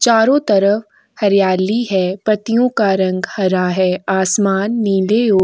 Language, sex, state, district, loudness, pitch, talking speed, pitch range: Hindi, female, Uttar Pradesh, Etah, -15 LUFS, 200 Hz, 145 wpm, 190-225 Hz